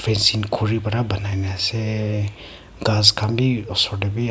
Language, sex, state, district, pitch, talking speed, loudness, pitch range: Nagamese, female, Nagaland, Kohima, 105 Hz, 165 wpm, -20 LUFS, 100-110 Hz